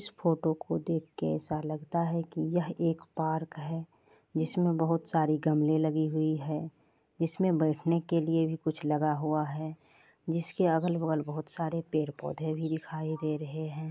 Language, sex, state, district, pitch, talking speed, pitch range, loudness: Maithili, female, Bihar, Supaul, 160 Hz, 170 wpm, 155-165 Hz, -31 LUFS